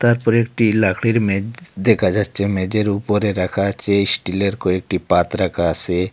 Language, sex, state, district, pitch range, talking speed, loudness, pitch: Bengali, male, Assam, Hailakandi, 95-115 Hz, 145 wpm, -18 LUFS, 100 Hz